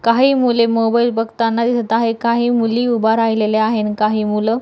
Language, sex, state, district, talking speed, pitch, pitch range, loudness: Marathi, female, Maharashtra, Dhule, 195 wpm, 230 Hz, 220-235 Hz, -16 LUFS